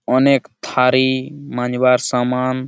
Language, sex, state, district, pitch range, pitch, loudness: Bengali, male, West Bengal, Malda, 125-130 Hz, 130 Hz, -17 LUFS